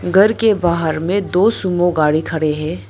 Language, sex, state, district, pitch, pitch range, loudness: Hindi, female, Arunachal Pradesh, Lower Dibang Valley, 175 Hz, 155-195 Hz, -16 LUFS